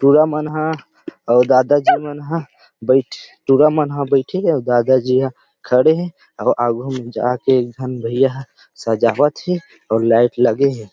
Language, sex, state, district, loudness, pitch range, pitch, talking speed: Chhattisgarhi, male, Chhattisgarh, Rajnandgaon, -17 LUFS, 120-145 Hz, 130 Hz, 190 wpm